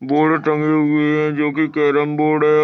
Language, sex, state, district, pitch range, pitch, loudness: Hindi, male, Maharashtra, Sindhudurg, 150-155 Hz, 150 Hz, -17 LUFS